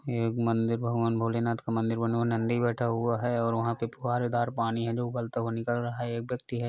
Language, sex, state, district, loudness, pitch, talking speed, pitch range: Hindi, male, Uttar Pradesh, Varanasi, -29 LUFS, 115 Hz, 235 wpm, 115-120 Hz